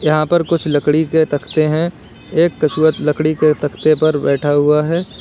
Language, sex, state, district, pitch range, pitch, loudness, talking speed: Hindi, male, Uttar Pradesh, Lalitpur, 150-160 Hz, 155 Hz, -15 LUFS, 185 wpm